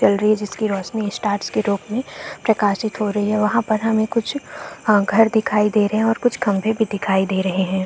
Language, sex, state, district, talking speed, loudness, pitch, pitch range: Hindi, female, Chhattisgarh, Bastar, 235 wpm, -19 LUFS, 210 Hz, 200-220 Hz